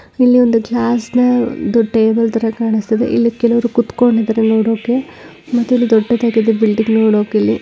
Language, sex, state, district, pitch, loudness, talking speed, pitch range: Kannada, female, Karnataka, Belgaum, 230 Hz, -14 LUFS, 125 wpm, 220-240 Hz